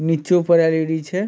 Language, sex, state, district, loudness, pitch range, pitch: Maithili, male, Bihar, Supaul, -17 LUFS, 160-180 Hz, 165 Hz